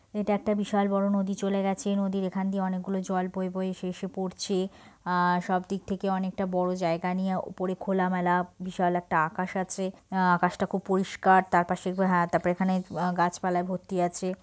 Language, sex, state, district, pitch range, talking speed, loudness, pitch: Bengali, female, West Bengal, Purulia, 180-195 Hz, 185 wpm, -28 LUFS, 185 Hz